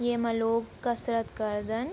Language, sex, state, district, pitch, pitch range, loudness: Garhwali, female, Uttarakhand, Tehri Garhwal, 230 Hz, 225-240 Hz, -30 LUFS